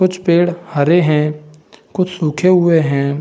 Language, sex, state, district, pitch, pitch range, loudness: Hindi, male, Bihar, Saran, 165 Hz, 150-175 Hz, -14 LUFS